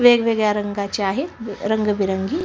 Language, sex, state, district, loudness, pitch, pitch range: Marathi, female, Maharashtra, Sindhudurg, -21 LUFS, 210 Hz, 200-235 Hz